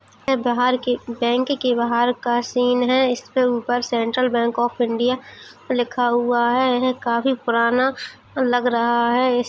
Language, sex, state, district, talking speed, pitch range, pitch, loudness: Hindi, female, Uttar Pradesh, Jalaun, 160 wpm, 240-255 Hz, 245 Hz, -20 LUFS